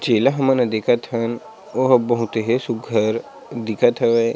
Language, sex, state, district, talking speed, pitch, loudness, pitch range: Chhattisgarhi, male, Chhattisgarh, Sarguja, 135 wpm, 115 Hz, -19 LUFS, 115-120 Hz